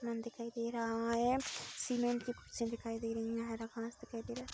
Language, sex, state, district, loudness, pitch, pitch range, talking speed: Hindi, female, Bihar, Saharsa, -39 LUFS, 230 Hz, 230-240 Hz, 240 wpm